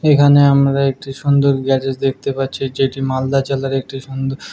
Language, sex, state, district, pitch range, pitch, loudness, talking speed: Bengali, male, West Bengal, Malda, 135-140 Hz, 135 Hz, -16 LUFS, 170 wpm